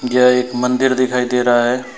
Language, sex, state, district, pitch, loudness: Hindi, male, West Bengal, Alipurduar, 125 Hz, -15 LUFS